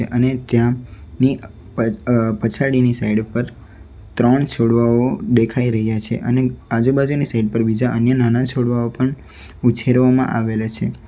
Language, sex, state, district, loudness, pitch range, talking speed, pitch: Gujarati, male, Gujarat, Valsad, -18 LUFS, 110-125 Hz, 125 wpm, 120 Hz